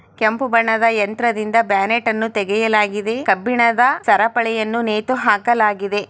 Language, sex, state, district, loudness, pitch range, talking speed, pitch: Kannada, female, Karnataka, Chamarajanagar, -17 LUFS, 215-235 Hz, 90 wpm, 225 Hz